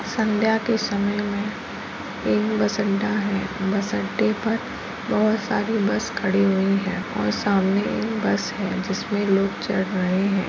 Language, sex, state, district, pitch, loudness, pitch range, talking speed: Hindi, female, Uttar Pradesh, Jalaun, 205 Hz, -23 LUFS, 195-215 Hz, 155 wpm